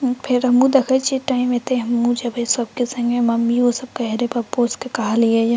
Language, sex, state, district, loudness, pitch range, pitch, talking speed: Maithili, female, Bihar, Purnia, -19 LUFS, 235-255 Hz, 245 Hz, 215 wpm